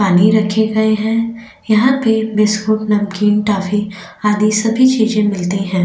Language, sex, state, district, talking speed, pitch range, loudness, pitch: Hindi, female, Maharashtra, Aurangabad, 145 wpm, 205-220 Hz, -14 LUFS, 215 Hz